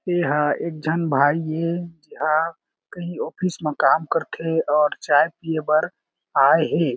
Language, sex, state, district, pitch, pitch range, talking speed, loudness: Chhattisgarhi, male, Chhattisgarh, Jashpur, 160 Hz, 150-170 Hz, 155 wpm, -21 LUFS